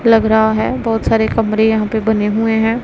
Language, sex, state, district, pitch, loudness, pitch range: Hindi, female, Punjab, Pathankot, 220 Hz, -14 LUFS, 220-225 Hz